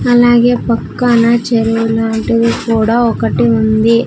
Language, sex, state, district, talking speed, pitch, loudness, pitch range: Telugu, female, Andhra Pradesh, Sri Satya Sai, 90 wpm, 230 Hz, -12 LUFS, 225-235 Hz